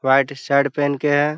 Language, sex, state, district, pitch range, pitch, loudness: Hindi, male, Bihar, Jahanabad, 140-145 Hz, 140 Hz, -19 LUFS